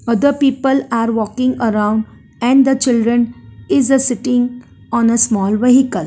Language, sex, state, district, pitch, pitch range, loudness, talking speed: English, female, Gujarat, Valsad, 240 Hz, 230-265 Hz, -15 LUFS, 150 wpm